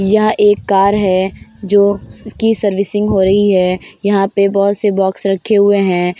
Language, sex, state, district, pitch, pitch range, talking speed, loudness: Hindi, female, Uttar Pradesh, Hamirpur, 200 Hz, 195-205 Hz, 175 wpm, -13 LUFS